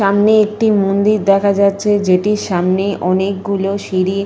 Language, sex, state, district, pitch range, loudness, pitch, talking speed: Bengali, female, Jharkhand, Jamtara, 195-205 Hz, -14 LUFS, 200 Hz, 140 wpm